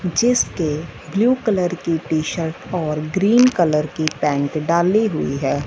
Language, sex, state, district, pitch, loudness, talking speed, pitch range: Hindi, female, Punjab, Fazilka, 170 Hz, -19 LUFS, 150 wpm, 155-195 Hz